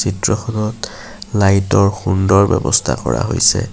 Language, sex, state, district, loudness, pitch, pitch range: Assamese, male, Assam, Kamrup Metropolitan, -15 LUFS, 105 Hz, 95-110 Hz